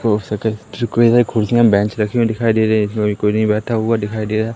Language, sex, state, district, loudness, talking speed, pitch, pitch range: Hindi, male, Madhya Pradesh, Katni, -16 LUFS, 265 wpm, 110 Hz, 105-115 Hz